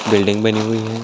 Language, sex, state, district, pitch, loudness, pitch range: Hindi, male, Andhra Pradesh, Anantapur, 110 Hz, -17 LUFS, 105-110 Hz